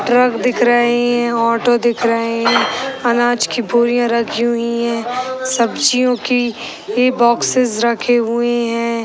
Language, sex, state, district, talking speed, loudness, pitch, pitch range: Hindi, female, Bihar, Sitamarhi, 140 wpm, -15 LUFS, 240 Hz, 235-245 Hz